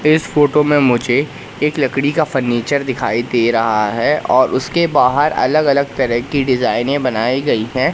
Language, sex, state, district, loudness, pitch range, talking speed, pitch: Hindi, male, Madhya Pradesh, Katni, -15 LUFS, 120-145 Hz, 175 wpm, 130 Hz